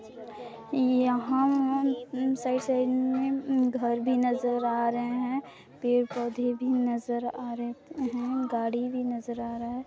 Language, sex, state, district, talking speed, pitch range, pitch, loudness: Hindi, female, Chhattisgarh, Sarguja, 135 wpm, 240-260 Hz, 245 Hz, -28 LUFS